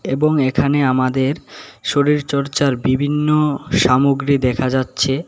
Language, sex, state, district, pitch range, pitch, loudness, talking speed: Bengali, male, Tripura, West Tripura, 130-145 Hz, 140 Hz, -17 LUFS, 90 wpm